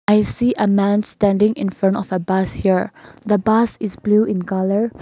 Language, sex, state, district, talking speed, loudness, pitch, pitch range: English, female, Nagaland, Kohima, 205 wpm, -18 LUFS, 205 Hz, 195-215 Hz